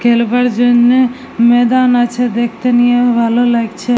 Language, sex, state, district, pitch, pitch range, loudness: Bengali, female, West Bengal, Jalpaiguri, 245 Hz, 235-245 Hz, -12 LUFS